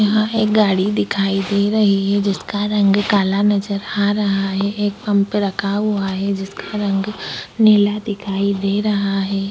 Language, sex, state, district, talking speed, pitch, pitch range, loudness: Hindi, female, Goa, North and South Goa, 170 wpm, 200 Hz, 195-210 Hz, -18 LUFS